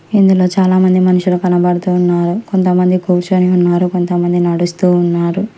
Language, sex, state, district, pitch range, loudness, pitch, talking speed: Telugu, male, Telangana, Hyderabad, 175-185 Hz, -12 LUFS, 180 Hz, 130 wpm